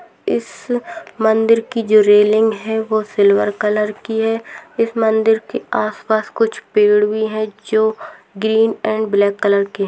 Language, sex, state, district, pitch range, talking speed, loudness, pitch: Hindi, female, Bihar, Saran, 210-225 Hz, 160 wpm, -16 LUFS, 220 Hz